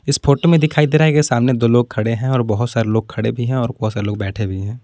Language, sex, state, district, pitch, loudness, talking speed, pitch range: Hindi, male, Jharkhand, Palamu, 120 Hz, -17 LUFS, 335 wpm, 110-135 Hz